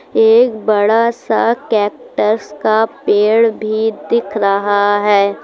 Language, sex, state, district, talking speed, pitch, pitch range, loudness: Hindi, female, Uttar Pradesh, Lucknow, 110 wpm, 215 Hz, 205-230 Hz, -14 LUFS